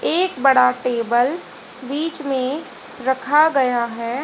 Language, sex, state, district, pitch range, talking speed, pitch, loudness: Hindi, female, Haryana, Charkhi Dadri, 245-290 Hz, 115 wpm, 265 Hz, -19 LUFS